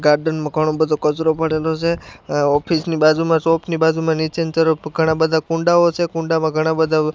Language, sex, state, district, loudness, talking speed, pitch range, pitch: Gujarati, male, Gujarat, Gandhinagar, -18 LUFS, 200 wpm, 155-165 Hz, 160 Hz